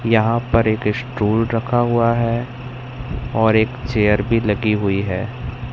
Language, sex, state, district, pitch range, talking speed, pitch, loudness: Hindi, male, Madhya Pradesh, Katni, 110-120 Hz, 145 wpm, 115 Hz, -18 LUFS